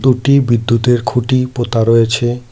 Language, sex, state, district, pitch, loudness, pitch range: Bengali, male, West Bengal, Cooch Behar, 120 Hz, -13 LUFS, 115-125 Hz